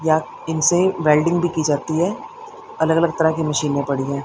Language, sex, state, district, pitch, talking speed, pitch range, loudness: Hindi, female, Haryana, Charkhi Dadri, 160 Hz, 195 wpm, 150-175 Hz, -19 LUFS